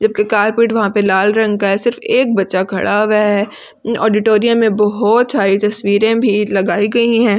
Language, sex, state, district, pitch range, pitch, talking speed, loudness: Hindi, female, Delhi, New Delhi, 205-230 Hz, 210 Hz, 185 wpm, -14 LUFS